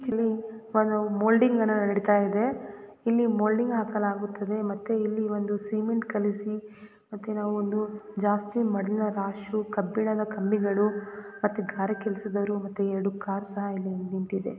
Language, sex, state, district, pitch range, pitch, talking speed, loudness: Kannada, female, Karnataka, Raichur, 205-215 Hz, 210 Hz, 125 wpm, -28 LUFS